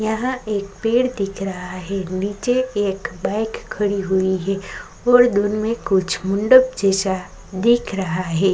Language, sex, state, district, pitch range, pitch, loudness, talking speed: Hindi, female, Uttarakhand, Tehri Garhwal, 190-225 Hz, 200 Hz, -20 LUFS, 155 wpm